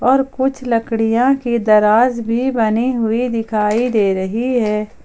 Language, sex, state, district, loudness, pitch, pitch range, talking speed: Hindi, female, Jharkhand, Ranchi, -16 LUFS, 230 Hz, 215-250 Hz, 145 wpm